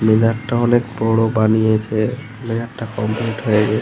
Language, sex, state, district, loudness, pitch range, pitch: Bengali, male, Jharkhand, Jamtara, -18 LUFS, 110-115 Hz, 115 Hz